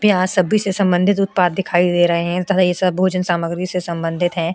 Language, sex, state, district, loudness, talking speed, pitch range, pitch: Hindi, female, Uttar Pradesh, Etah, -17 LUFS, 225 wpm, 175-190 Hz, 180 Hz